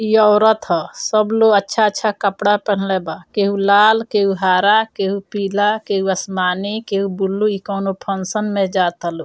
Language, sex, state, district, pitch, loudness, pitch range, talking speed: Bhojpuri, female, Bihar, Muzaffarpur, 200 Hz, -17 LUFS, 195-215 Hz, 160 wpm